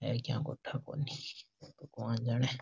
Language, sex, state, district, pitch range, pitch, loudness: Marwari, male, Rajasthan, Nagaur, 120-140 Hz, 130 Hz, -37 LUFS